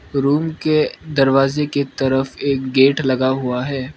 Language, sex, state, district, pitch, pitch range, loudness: Hindi, male, Arunachal Pradesh, Lower Dibang Valley, 135 Hz, 130-145 Hz, -18 LUFS